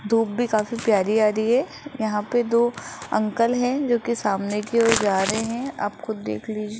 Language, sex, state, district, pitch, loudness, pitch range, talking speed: Hindi, female, Rajasthan, Jaipur, 220 Hz, -23 LUFS, 210-235 Hz, 210 wpm